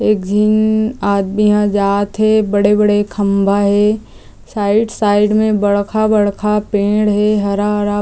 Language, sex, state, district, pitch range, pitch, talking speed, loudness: Chhattisgarhi, female, Chhattisgarh, Jashpur, 205-215 Hz, 210 Hz, 120 wpm, -14 LUFS